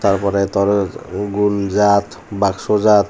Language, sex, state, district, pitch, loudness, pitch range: Chakma, male, Tripura, Unakoti, 100 Hz, -17 LUFS, 100-105 Hz